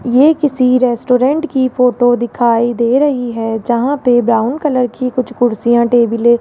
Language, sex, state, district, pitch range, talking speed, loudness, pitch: Hindi, female, Rajasthan, Jaipur, 235-255 Hz, 170 wpm, -13 LUFS, 245 Hz